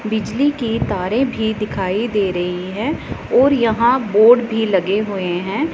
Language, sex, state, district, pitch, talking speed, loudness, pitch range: Hindi, female, Punjab, Pathankot, 220 Hz, 155 wpm, -17 LUFS, 195-240 Hz